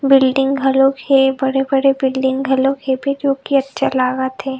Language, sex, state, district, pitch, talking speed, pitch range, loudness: Chhattisgarhi, female, Chhattisgarh, Rajnandgaon, 270 Hz, 155 wpm, 265-275 Hz, -16 LUFS